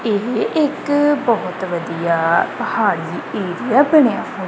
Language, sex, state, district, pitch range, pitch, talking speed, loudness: Punjabi, female, Punjab, Kapurthala, 180-285 Hz, 225 Hz, 105 wpm, -17 LUFS